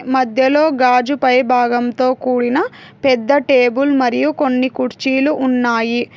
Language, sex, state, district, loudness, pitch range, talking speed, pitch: Telugu, female, Telangana, Hyderabad, -15 LUFS, 250-275 Hz, 105 wpm, 255 Hz